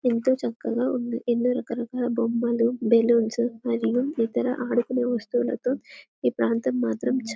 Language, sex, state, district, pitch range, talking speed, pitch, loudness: Telugu, female, Telangana, Karimnagar, 230-245 Hz, 120 wpm, 240 Hz, -25 LUFS